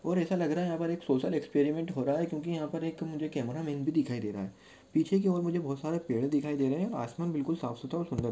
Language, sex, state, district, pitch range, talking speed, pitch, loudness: Hindi, male, Maharashtra, Sindhudurg, 135-170 Hz, 295 wpm, 155 Hz, -32 LUFS